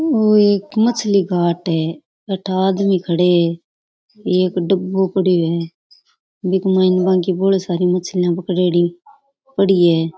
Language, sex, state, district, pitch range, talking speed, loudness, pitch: Rajasthani, female, Rajasthan, Churu, 175-200 Hz, 80 wpm, -17 LUFS, 185 Hz